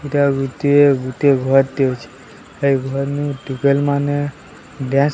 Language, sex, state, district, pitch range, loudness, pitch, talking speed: Odia, male, Odisha, Sambalpur, 135-145 Hz, -17 LUFS, 140 Hz, 150 wpm